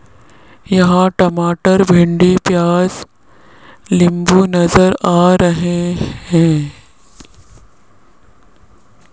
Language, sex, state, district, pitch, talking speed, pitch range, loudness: Hindi, male, Rajasthan, Jaipur, 175 Hz, 60 wpm, 150-180 Hz, -12 LUFS